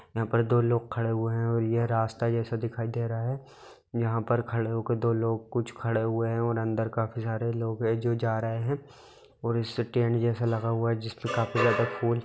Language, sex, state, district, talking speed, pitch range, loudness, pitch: Hindi, male, Bihar, Muzaffarpur, 235 wpm, 115-120 Hz, -29 LUFS, 115 Hz